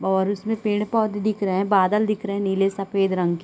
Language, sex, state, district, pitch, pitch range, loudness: Hindi, female, Chhattisgarh, Bilaspur, 200 Hz, 195-210 Hz, -22 LUFS